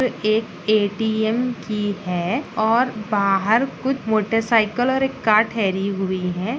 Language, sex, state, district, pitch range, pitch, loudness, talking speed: Hindi, female, Chhattisgarh, Raigarh, 205-235 Hz, 220 Hz, -20 LUFS, 135 wpm